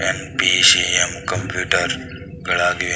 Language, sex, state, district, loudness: Kannada, male, Karnataka, Belgaum, -17 LUFS